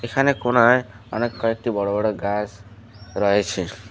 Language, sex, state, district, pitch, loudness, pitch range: Bengali, male, West Bengal, Alipurduar, 110 Hz, -21 LUFS, 100-120 Hz